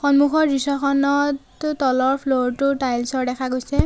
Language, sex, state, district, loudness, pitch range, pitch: Assamese, female, Assam, Sonitpur, -20 LUFS, 260-285 Hz, 275 Hz